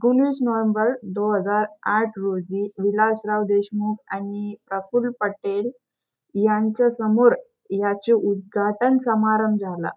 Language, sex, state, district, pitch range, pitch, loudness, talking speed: Marathi, female, Maharashtra, Aurangabad, 200-230 Hz, 210 Hz, -22 LUFS, 95 wpm